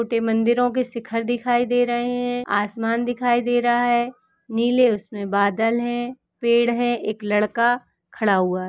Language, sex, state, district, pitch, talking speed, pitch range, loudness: Hindi, female, Uttar Pradesh, Etah, 240 Hz, 165 wpm, 225-245 Hz, -21 LUFS